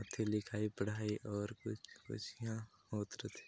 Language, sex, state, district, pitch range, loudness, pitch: Hindi, male, Chhattisgarh, Balrampur, 105-110 Hz, -43 LUFS, 105 Hz